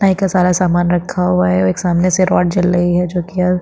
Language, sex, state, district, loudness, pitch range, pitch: Hindi, female, Chhattisgarh, Sukma, -14 LUFS, 175-180 Hz, 180 Hz